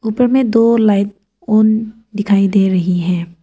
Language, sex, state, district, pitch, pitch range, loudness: Hindi, female, Arunachal Pradesh, Papum Pare, 205 Hz, 195-225 Hz, -14 LUFS